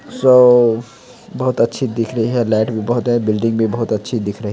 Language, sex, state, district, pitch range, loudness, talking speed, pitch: Hindi, male, Bihar, Samastipur, 110-125 Hz, -16 LUFS, 210 wpm, 115 Hz